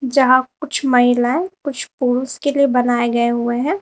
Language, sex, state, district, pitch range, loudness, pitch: Hindi, female, Uttar Pradesh, Lalitpur, 245-285 Hz, -17 LUFS, 255 Hz